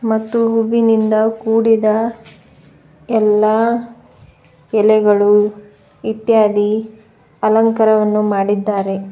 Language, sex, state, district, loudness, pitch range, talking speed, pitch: Kannada, female, Karnataka, Bidar, -15 LUFS, 210-225 Hz, 55 wpm, 220 Hz